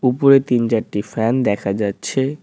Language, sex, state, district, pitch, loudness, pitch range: Bengali, male, West Bengal, Cooch Behar, 120 Hz, -18 LUFS, 105-135 Hz